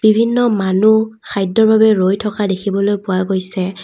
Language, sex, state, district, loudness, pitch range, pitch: Assamese, female, Assam, Kamrup Metropolitan, -15 LUFS, 190-220 Hz, 205 Hz